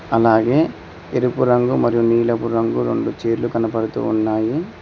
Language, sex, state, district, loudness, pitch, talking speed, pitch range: Telugu, male, Telangana, Mahabubabad, -18 LUFS, 115 Hz, 125 wpm, 110-120 Hz